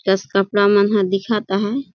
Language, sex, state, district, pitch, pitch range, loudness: Surgujia, female, Chhattisgarh, Sarguja, 200 Hz, 195-210 Hz, -17 LUFS